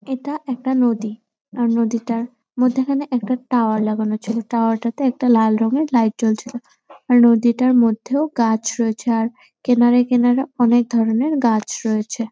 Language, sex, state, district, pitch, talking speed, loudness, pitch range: Bengali, female, West Bengal, Purulia, 235 Hz, 150 wpm, -18 LUFS, 225-255 Hz